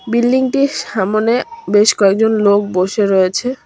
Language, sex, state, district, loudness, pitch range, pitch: Bengali, female, West Bengal, Cooch Behar, -14 LUFS, 195-245 Hz, 215 Hz